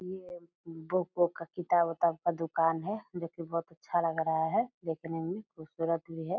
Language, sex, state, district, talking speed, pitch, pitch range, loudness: Hindi, female, Bihar, Purnia, 195 wpm, 170 Hz, 165-175 Hz, -33 LUFS